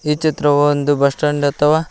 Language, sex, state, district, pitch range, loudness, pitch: Kannada, male, Karnataka, Koppal, 145-150 Hz, -16 LUFS, 145 Hz